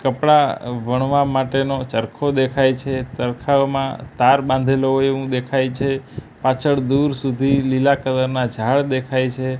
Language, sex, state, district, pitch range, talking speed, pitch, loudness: Gujarati, male, Gujarat, Gandhinagar, 130-135 Hz, 135 wpm, 135 Hz, -19 LUFS